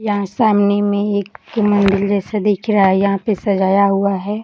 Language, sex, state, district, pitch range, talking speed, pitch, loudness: Hindi, female, Uttar Pradesh, Gorakhpur, 195-210 Hz, 190 wpm, 205 Hz, -16 LUFS